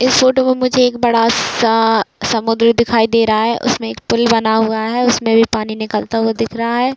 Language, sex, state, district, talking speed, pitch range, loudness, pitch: Hindi, female, Uttar Pradesh, Varanasi, 225 wpm, 225-240 Hz, -14 LUFS, 230 Hz